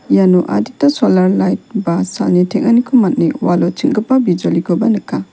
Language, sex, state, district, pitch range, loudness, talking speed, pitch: Garo, female, Meghalaya, West Garo Hills, 165-240 Hz, -14 LUFS, 135 wpm, 180 Hz